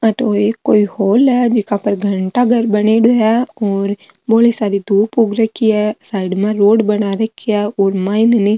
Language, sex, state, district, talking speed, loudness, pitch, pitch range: Marwari, female, Rajasthan, Nagaur, 205 wpm, -14 LUFS, 210 Hz, 205-225 Hz